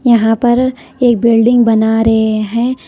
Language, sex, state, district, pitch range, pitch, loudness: Hindi, female, Karnataka, Koppal, 225-245 Hz, 235 Hz, -11 LUFS